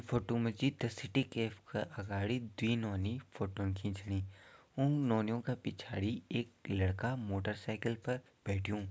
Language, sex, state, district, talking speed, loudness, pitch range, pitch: Garhwali, male, Uttarakhand, Tehri Garhwal, 150 wpm, -38 LUFS, 100-120 Hz, 110 Hz